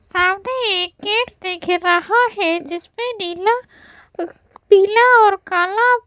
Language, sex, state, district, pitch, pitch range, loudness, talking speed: Hindi, female, Bihar, West Champaran, 395 Hz, 355-475 Hz, -16 LUFS, 130 wpm